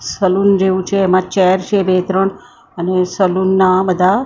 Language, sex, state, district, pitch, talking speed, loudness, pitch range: Gujarati, female, Maharashtra, Mumbai Suburban, 190 Hz, 180 wpm, -14 LUFS, 185-195 Hz